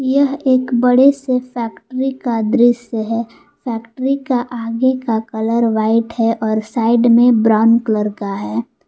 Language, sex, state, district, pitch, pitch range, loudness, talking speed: Hindi, female, Jharkhand, Palamu, 235 Hz, 225-255 Hz, -16 LUFS, 150 wpm